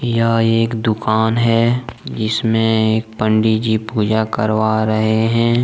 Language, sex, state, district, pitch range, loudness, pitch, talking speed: Hindi, male, Jharkhand, Deoghar, 110-115 Hz, -16 LUFS, 110 Hz, 140 wpm